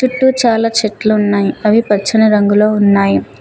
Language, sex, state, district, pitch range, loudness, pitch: Telugu, female, Telangana, Mahabubabad, 205-225 Hz, -12 LUFS, 215 Hz